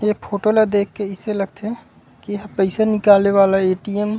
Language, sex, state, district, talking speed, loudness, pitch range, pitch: Chhattisgarhi, male, Chhattisgarh, Raigarh, 185 wpm, -17 LUFS, 200-210 Hz, 205 Hz